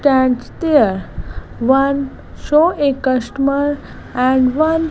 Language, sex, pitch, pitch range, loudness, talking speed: English, female, 275 Hz, 260-295 Hz, -16 LUFS, 110 wpm